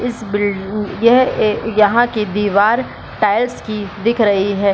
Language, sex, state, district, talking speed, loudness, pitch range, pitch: Hindi, female, Bihar, Supaul, 150 wpm, -16 LUFS, 205-235 Hz, 210 Hz